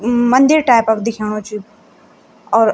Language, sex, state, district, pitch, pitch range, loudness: Garhwali, female, Uttarakhand, Tehri Garhwal, 225 Hz, 215-240 Hz, -14 LUFS